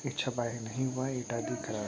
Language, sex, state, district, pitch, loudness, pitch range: Hindi, male, Uttar Pradesh, Etah, 120 Hz, -35 LUFS, 115-130 Hz